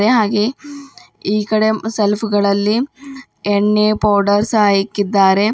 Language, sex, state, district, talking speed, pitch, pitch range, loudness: Kannada, female, Karnataka, Bidar, 85 wpm, 210 Hz, 205-220 Hz, -15 LUFS